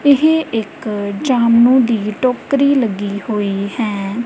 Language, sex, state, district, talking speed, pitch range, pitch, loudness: Punjabi, female, Punjab, Kapurthala, 110 wpm, 205-260 Hz, 230 Hz, -15 LUFS